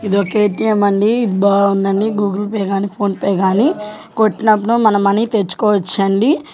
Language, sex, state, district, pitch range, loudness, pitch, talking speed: Telugu, female, Andhra Pradesh, Guntur, 200-220 Hz, -15 LUFS, 205 Hz, 130 wpm